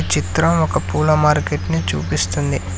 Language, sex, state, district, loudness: Telugu, male, Telangana, Hyderabad, -18 LUFS